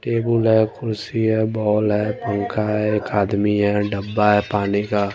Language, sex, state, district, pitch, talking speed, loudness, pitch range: Hindi, male, Bihar, Kaimur, 105 Hz, 175 wpm, -20 LUFS, 105-110 Hz